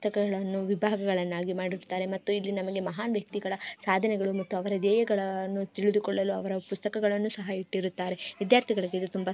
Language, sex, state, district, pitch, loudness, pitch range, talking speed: Kannada, female, Karnataka, Gulbarga, 195 Hz, -29 LUFS, 190-205 Hz, 130 wpm